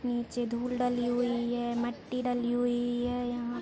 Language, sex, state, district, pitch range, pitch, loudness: Hindi, female, Jharkhand, Sahebganj, 240-245 Hz, 245 Hz, -31 LUFS